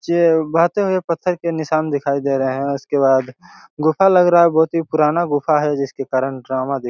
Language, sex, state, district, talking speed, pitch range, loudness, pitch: Hindi, male, Chhattisgarh, Raigarh, 215 wpm, 140-170 Hz, -17 LUFS, 150 Hz